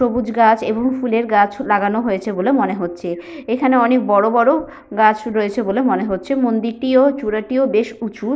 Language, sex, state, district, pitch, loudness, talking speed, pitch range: Bengali, female, West Bengal, Paschim Medinipur, 230 Hz, -17 LUFS, 165 wpm, 210-255 Hz